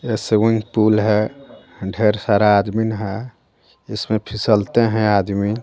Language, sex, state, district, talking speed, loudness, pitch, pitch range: Hindi, female, Jharkhand, Garhwa, 130 wpm, -18 LUFS, 110 Hz, 105-110 Hz